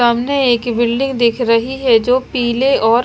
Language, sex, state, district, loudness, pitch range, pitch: Hindi, female, Himachal Pradesh, Shimla, -14 LUFS, 235-260 Hz, 240 Hz